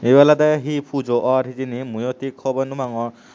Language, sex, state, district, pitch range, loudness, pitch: Chakma, male, Tripura, Unakoti, 125-140 Hz, -20 LUFS, 130 Hz